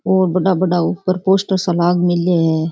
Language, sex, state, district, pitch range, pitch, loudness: Rajasthani, female, Rajasthan, Churu, 175-190 Hz, 180 Hz, -16 LUFS